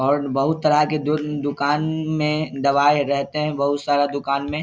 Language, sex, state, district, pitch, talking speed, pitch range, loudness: Hindi, male, Bihar, Saharsa, 145 Hz, 180 wpm, 140-150 Hz, -21 LUFS